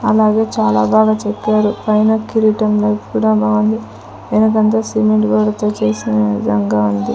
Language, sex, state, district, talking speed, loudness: Telugu, female, Andhra Pradesh, Sri Satya Sai, 125 wpm, -14 LUFS